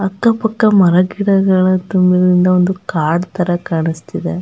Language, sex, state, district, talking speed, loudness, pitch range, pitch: Kannada, female, Karnataka, Chamarajanagar, 120 wpm, -14 LUFS, 175-195 Hz, 180 Hz